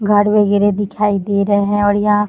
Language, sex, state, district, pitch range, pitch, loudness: Hindi, female, Uttar Pradesh, Gorakhpur, 205-210 Hz, 205 Hz, -15 LUFS